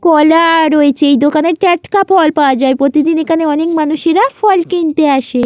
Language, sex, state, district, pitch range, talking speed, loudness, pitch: Bengali, female, West Bengal, Jalpaiguri, 290-340 Hz, 165 wpm, -11 LUFS, 315 Hz